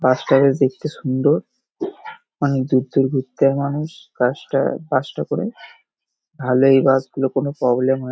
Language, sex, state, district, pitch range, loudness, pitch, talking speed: Bengali, male, West Bengal, Paschim Medinipur, 130-150 Hz, -19 LUFS, 135 Hz, 165 wpm